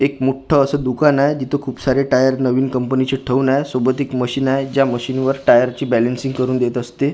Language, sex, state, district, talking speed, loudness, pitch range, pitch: Marathi, male, Maharashtra, Gondia, 235 wpm, -17 LUFS, 125-135 Hz, 130 Hz